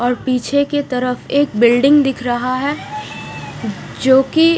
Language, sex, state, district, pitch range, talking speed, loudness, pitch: Hindi, female, Punjab, Fazilka, 250-285 Hz, 145 wpm, -16 LUFS, 265 Hz